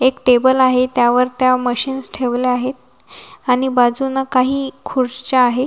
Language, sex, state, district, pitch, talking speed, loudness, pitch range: Marathi, female, Maharashtra, Washim, 255 Hz, 135 wpm, -16 LUFS, 250-265 Hz